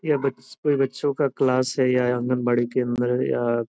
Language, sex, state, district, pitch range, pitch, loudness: Hindi, male, Bihar, Gopalganj, 120-140 Hz, 125 Hz, -23 LUFS